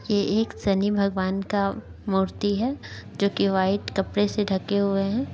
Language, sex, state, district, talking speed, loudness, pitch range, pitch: Hindi, female, Bihar, Gaya, 170 wpm, -25 LUFS, 195-205 Hz, 200 Hz